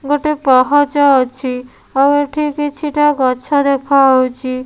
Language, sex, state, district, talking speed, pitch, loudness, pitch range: Odia, female, Odisha, Nuapada, 115 wpm, 275 Hz, -14 LUFS, 255-290 Hz